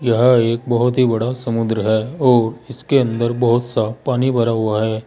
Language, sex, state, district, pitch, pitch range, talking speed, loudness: Hindi, male, Uttar Pradesh, Saharanpur, 120 Hz, 115-125 Hz, 190 wpm, -17 LUFS